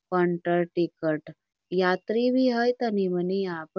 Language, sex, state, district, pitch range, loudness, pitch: Magahi, female, Bihar, Lakhisarai, 175-220 Hz, -26 LUFS, 180 Hz